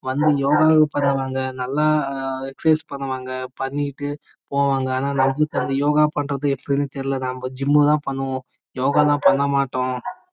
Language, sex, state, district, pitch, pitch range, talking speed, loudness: Tamil, male, Karnataka, Chamarajanagar, 140 Hz, 130-145 Hz, 120 wpm, -21 LUFS